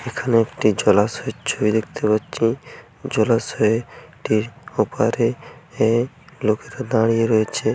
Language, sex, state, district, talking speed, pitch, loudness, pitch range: Bengali, male, West Bengal, Paschim Medinipur, 100 wpm, 115 Hz, -20 LUFS, 110-120 Hz